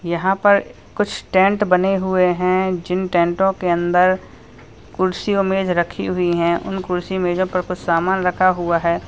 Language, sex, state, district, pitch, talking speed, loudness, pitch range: Hindi, male, Uttar Pradesh, Lalitpur, 180 Hz, 170 wpm, -18 LUFS, 175-190 Hz